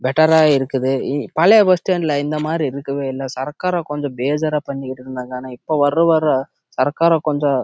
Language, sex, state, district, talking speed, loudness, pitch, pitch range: Tamil, male, Karnataka, Chamarajanagar, 120 wpm, -18 LUFS, 145 Hz, 135-160 Hz